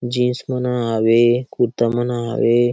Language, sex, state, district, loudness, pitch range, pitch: Chhattisgarhi, male, Chhattisgarh, Sarguja, -18 LUFS, 115-125 Hz, 120 Hz